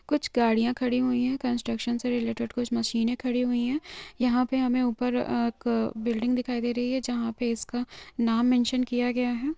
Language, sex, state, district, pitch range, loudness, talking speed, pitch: Hindi, female, Andhra Pradesh, Chittoor, 235-250 Hz, -27 LUFS, 140 wpm, 245 Hz